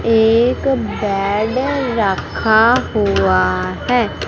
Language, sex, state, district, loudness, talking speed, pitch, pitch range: Hindi, female, Madhya Pradesh, Umaria, -16 LUFS, 70 wpm, 220 Hz, 195-240 Hz